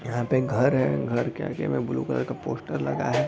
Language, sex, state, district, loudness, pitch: Hindi, male, Bihar, East Champaran, -26 LUFS, 125 Hz